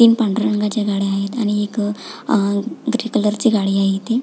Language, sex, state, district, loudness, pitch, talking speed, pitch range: Marathi, female, Maharashtra, Pune, -19 LUFS, 210 Hz, 200 wpm, 200-230 Hz